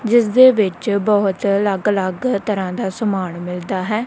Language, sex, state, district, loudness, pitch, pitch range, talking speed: Punjabi, female, Punjab, Kapurthala, -17 LUFS, 200 Hz, 185-215 Hz, 145 wpm